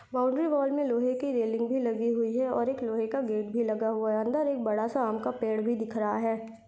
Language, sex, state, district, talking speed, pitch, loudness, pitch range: Hindi, female, Maharashtra, Chandrapur, 270 wpm, 230 Hz, -29 LUFS, 220-255 Hz